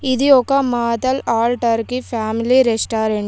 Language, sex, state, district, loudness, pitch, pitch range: Telugu, female, Telangana, Komaram Bheem, -17 LUFS, 235 Hz, 230-260 Hz